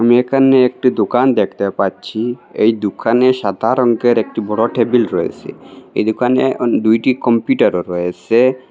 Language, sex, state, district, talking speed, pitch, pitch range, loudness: Bengali, male, Assam, Hailakandi, 130 wpm, 120 Hz, 110-125 Hz, -15 LUFS